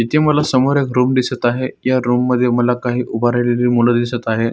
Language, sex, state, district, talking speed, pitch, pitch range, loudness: Marathi, male, Maharashtra, Solapur, 225 wpm, 125 Hz, 120-130 Hz, -16 LUFS